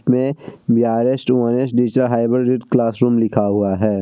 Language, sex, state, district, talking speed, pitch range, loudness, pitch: Hindi, male, Bihar, Vaishali, 105 wpm, 115-125 Hz, -17 LUFS, 120 Hz